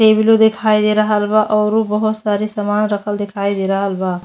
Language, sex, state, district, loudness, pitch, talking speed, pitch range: Bhojpuri, female, Uttar Pradesh, Deoria, -15 LUFS, 210 Hz, 200 wpm, 205-215 Hz